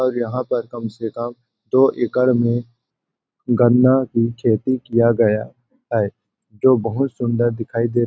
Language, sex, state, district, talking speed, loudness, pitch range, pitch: Hindi, male, Chhattisgarh, Balrampur, 150 wpm, -19 LUFS, 115-125 Hz, 120 Hz